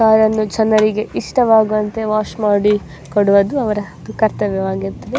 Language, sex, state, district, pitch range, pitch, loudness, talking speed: Kannada, female, Karnataka, Dakshina Kannada, 205-220 Hz, 215 Hz, -16 LUFS, 115 wpm